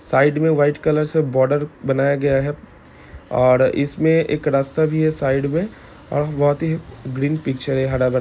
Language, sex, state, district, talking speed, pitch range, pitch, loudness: Hindi, male, Bihar, Gopalganj, 185 wpm, 135-155 Hz, 145 Hz, -19 LUFS